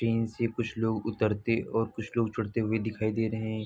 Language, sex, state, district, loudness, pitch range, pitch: Hindi, male, Uttar Pradesh, Jalaun, -30 LUFS, 110-115 Hz, 110 Hz